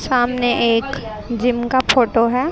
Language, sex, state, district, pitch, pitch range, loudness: Hindi, female, Haryana, Jhajjar, 245 Hz, 230-255 Hz, -17 LUFS